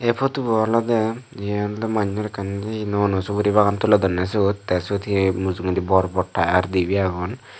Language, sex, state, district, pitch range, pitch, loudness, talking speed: Chakma, male, Tripura, Dhalai, 95-110 Hz, 100 Hz, -21 LUFS, 175 wpm